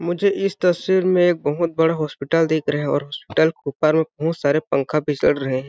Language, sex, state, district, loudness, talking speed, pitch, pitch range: Hindi, male, Chhattisgarh, Balrampur, -20 LUFS, 255 wpm, 160 Hz, 145-175 Hz